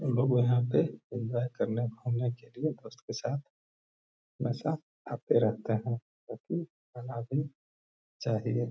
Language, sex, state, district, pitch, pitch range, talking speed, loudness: Hindi, male, Bihar, Gaya, 120 Hz, 115-135 Hz, 140 wpm, -32 LUFS